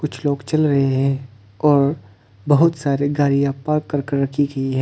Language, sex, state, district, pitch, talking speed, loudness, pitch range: Hindi, male, Arunachal Pradesh, Papum Pare, 140 Hz, 185 wpm, -19 LUFS, 135-145 Hz